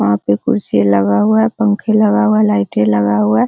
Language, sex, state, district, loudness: Hindi, female, Bihar, Araria, -13 LUFS